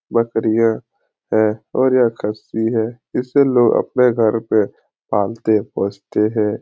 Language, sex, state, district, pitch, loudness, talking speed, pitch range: Hindi, male, Bihar, Supaul, 110 Hz, -18 LUFS, 125 wpm, 105-120 Hz